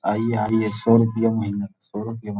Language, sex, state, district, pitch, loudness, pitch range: Hindi, male, Bihar, Jamui, 110 Hz, -22 LUFS, 105-115 Hz